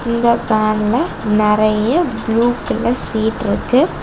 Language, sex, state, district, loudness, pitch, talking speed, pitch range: Tamil, female, Tamil Nadu, Kanyakumari, -16 LUFS, 225 Hz, 105 wpm, 215-235 Hz